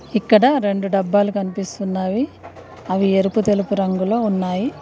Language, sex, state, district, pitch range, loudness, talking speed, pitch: Telugu, female, Telangana, Mahabubabad, 195-220 Hz, -19 LUFS, 110 wpm, 200 Hz